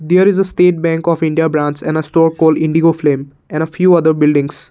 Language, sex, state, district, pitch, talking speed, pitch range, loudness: English, male, Assam, Kamrup Metropolitan, 160 Hz, 240 wpm, 155-170 Hz, -13 LUFS